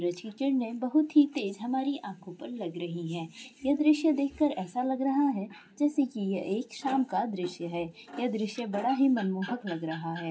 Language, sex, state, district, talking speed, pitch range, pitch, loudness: Hindi, female, Maharashtra, Aurangabad, 185 wpm, 180-270 Hz, 230 Hz, -30 LUFS